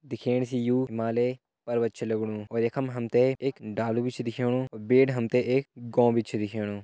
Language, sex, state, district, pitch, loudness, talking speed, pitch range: Hindi, male, Uttarakhand, Tehri Garhwal, 120 Hz, -27 LUFS, 200 wpm, 115-125 Hz